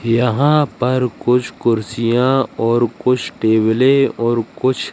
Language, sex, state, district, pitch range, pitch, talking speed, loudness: Hindi, female, Madhya Pradesh, Katni, 115-130 Hz, 120 Hz, 110 wpm, -16 LUFS